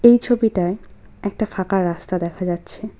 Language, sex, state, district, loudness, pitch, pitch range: Bengali, female, West Bengal, Cooch Behar, -21 LUFS, 190 Hz, 180-220 Hz